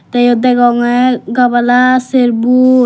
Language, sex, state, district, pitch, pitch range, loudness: Chakma, female, Tripura, Dhalai, 245 Hz, 240-255 Hz, -10 LUFS